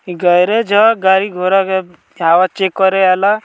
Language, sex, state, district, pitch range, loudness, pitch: Bhojpuri, male, Bihar, Muzaffarpur, 180-195 Hz, -12 LUFS, 190 Hz